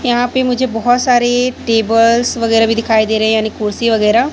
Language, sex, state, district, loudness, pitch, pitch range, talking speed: Hindi, female, Chhattisgarh, Raipur, -13 LUFS, 230 Hz, 220-245 Hz, 210 wpm